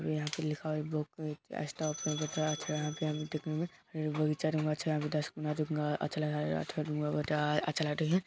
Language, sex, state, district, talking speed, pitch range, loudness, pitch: Hindi, male, Bihar, Bhagalpur, 35 wpm, 150-155 Hz, -35 LUFS, 155 Hz